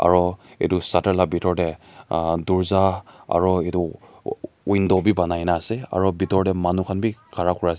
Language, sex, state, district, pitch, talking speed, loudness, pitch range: Nagamese, male, Nagaland, Dimapur, 90 Hz, 175 wpm, -22 LUFS, 85-95 Hz